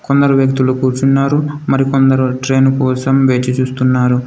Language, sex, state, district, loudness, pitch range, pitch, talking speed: Telugu, male, Telangana, Komaram Bheem, -13 LUFS, 130-135 Hz, 135 Hz, 110 wpm